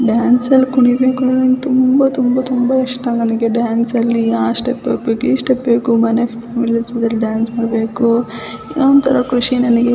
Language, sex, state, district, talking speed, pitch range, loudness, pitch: Kannada, female, Karnataka, Chamarajanagar, 145 wpm, 230-255 Hz, -14 LUFS, 240 Hz